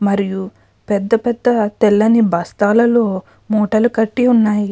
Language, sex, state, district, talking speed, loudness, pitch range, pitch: Telugu, female, Andhra Pradesh, Krishna, 100 wpm, -15 LUFS, 200-230 Hz, 215 Hz